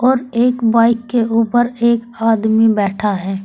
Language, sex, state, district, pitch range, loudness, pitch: Hindi, female, Uttar Pradesh, Saharanpur, 220-240 Hz, -15 LUFS, 230 Hz